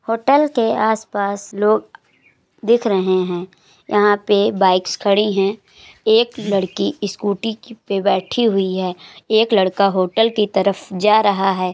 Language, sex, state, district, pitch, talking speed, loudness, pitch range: Hindi, female, Uttar Pradesh, Muzaffarnagar, 205 Hz, 140 wpm, -17 LUFS, 190-220 Hz